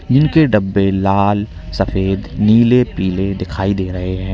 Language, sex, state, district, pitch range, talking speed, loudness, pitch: Hindi, male, Uttar Pradesh, Lalitpur, 95-105 Hz, 140 wpm, -15 LUFS, 95 Hz